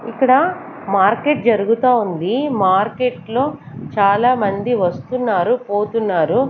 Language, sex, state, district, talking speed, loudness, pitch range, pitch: Telugu, female, Andhra Pradesh, Sri Satya Sai, 75 wpm, -17 LUFS, 205-255 Hz, 230 Hz